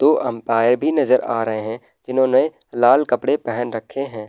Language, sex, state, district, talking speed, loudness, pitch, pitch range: Hindi, male, Uttar Pradesh, Muzaffarnagar, 180 wpm, -19 LUFS, 120 Hz, 115-130 Hz